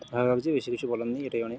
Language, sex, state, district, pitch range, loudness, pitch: Bengali, male, West Bengal, North 24 Parganas, 120-125 Hz, -29 LUFS, 120 Hz